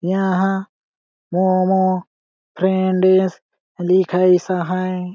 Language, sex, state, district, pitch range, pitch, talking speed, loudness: Sadri, male, Chhattisgarh, Jashpur, 180-190 Hz, 185 Hz, 60 wpm, -18 LUFS